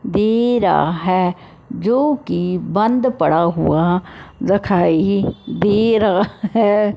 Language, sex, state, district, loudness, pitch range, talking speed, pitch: Hindi, male, Punjab, Fazilka, -17 LUFS, 180-220 Hz, 105 wpm, 200 Hz